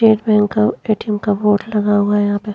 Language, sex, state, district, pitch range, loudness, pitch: Hindi, female, Uttar Pradesh, Muzaffarnagar, 205-215 Hz, -16 LUFS, 210 Hz